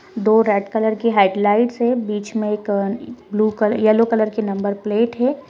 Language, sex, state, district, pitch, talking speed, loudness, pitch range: Hindi, female, Rajasthan, Churu, 215 Hz, 175 wpm, -18 LUFS, 210-230 Hz